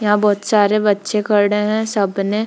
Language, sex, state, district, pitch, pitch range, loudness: Hindi, female, Bihar, Purnia, 210 Hz, 205-215 Hz, -16 LUFS